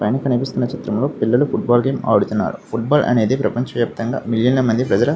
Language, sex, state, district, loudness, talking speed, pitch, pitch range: Telugu, male, Andhra Pradesh, Visakhapatnam, -18 LUFS, 200 wpm, 125 Hz, 115-135 Hz